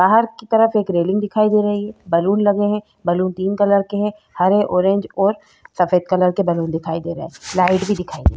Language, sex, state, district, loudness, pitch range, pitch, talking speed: Hindi, female, Uttar Pradesh, Jalaun, -18 LUFS, 180-205 Hz, 195 Hz, 235 wpm